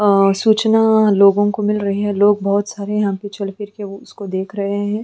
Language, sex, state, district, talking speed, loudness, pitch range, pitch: Hindi, female, Uttar Pradesh, Budaun, 240 wpm, -16 LUFS, 200-210 Hz, 205 Hz